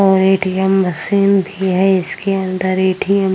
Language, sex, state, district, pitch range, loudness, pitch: Hindi, female, Uttar Pradesh, Jyotiba Phule Nagar, 185-195 Hz, -15 LUFS, 190 Hz